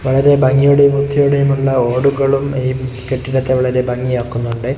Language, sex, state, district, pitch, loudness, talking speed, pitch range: Malayalam, male, Kerala, Kozhikode, 130 Hz, -14 LUFS, 100 wpm, 125-140 Hz